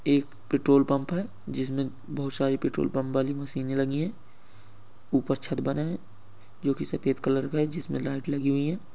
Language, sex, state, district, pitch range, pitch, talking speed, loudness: Hindi, male, Uttar Pradesh, Deoria, 130-140 Hz, 135 Hz, 195 wpm, -28 LUFS